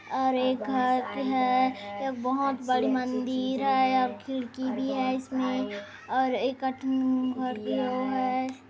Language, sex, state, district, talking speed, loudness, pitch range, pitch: Hindi, female, Chhattisgarh, Kabirdham, 130 wpm, -28 LUFS, 255-265 Hz, 260 Hz